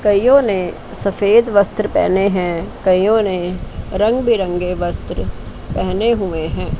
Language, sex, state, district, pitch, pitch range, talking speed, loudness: Hindi, female, Chandigarh, Chandigarh, 200 Hz, 180-215 Hz, 125 wpm, -16 LUFS